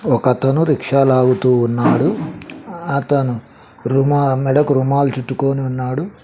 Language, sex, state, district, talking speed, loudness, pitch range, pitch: Telugu, male, Telangana, Mahabubabad, 95 wpm, -16 LUFS, 125-140 Hz, 135 Hz